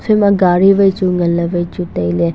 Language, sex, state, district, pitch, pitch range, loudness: Wancho, male, Arunachal Pradesh, Longding, 180 Hz, 170-195 Hz, -13 LUFS